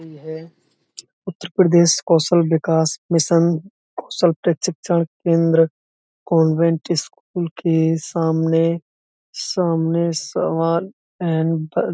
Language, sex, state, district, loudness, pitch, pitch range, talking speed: Hindi, male, Uttar Pradesh, Budaun, -19 LUFS, 165 Hz, 160-170 Hz, 80 wpm